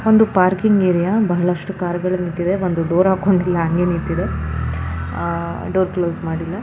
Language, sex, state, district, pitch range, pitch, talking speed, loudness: Kannada, female, Karnataka, Shimoga, 165-185 Hz, 175 Hz, 135 wpm, -18 LUFS